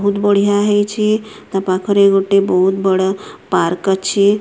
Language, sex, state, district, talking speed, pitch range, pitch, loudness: Odia, female, Odisha, Sambalpur, 135 wpm, 190-205 Hz, 200 Hz, -15 LUFS